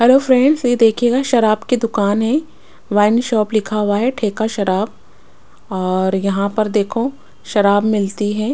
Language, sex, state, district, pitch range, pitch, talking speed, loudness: Hindi, female, Punjab, Pathankot, 205-240 Hz, 215 Hz, 155 wpm, -16 LUFS